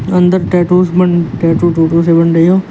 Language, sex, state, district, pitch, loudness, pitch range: Hindi, male, Uttar Pradesh, Shamli, 175 Hz, -11 LUFS, 165-180 Hz